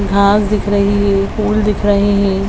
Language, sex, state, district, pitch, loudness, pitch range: Hindi, female, Bihar, Madhepura, 200 Hz, -14 LUFS, 200-205 Hz